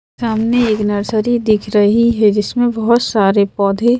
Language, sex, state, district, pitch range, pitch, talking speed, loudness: Hindi, female, Madhya Pradesh, Bhopal, 205-235 Hz, 220 Hz, 150 wpm, -14 LUFS